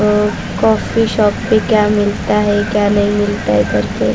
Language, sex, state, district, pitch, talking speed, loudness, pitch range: Hindi, female, Maharashtra, Mumbai Suburban, 205 Hz, 160 wpm, -14 LUFS, 205-215 Hz